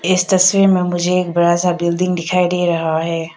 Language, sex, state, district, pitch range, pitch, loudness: Hindi, female, Arunachal Pradesh, Papum Pare, 170-180 Hz, 180 Hz, -15 LUFS